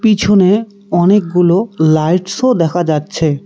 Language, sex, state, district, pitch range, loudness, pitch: Bengali, male, West Bengal, Cooch Behar, 165-205 Hz, -13 LUFS, 180 Hz